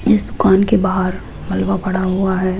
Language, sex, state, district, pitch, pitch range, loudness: Hindi, female, Rajasthan, Jaipur, 185 Hz, 185-190 Hz, -16 LUFS